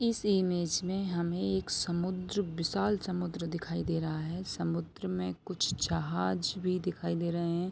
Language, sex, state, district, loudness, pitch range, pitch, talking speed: Hindi, female, Jharkhand, Sahebganj, -33 LUFS, 155-185 Hz, 170 Hz, 165 wpm